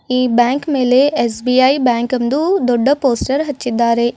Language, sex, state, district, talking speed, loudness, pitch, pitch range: Kannada, female, Karnataka, Bidar, 130 wpm, -15 LUFS, 255 Hz, 240-275 Hz